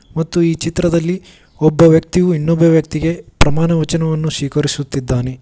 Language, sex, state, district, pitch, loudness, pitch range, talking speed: Kannada, male, Karnataka, Koppal, 160 Hz, -15 LUFS, 150-165 Hz, 110 wpm